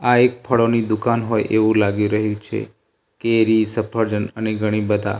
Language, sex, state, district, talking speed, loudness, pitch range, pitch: Gujarati, male, Gujarat, Gandhinagar, 160 wpm, -19 LUFS, 105-115 Hz, 110 Hz